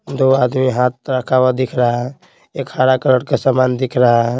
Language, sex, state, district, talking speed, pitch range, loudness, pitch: Hindi, male, Bihar, Patna, 220 wpm, 125-130 Hz, -15 LUFS, 130 Hz